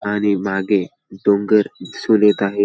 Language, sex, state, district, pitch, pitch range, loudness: Marathi, male, Maharashtra, Pune, 100 Hz, 100-105 Hz, -17 LUFS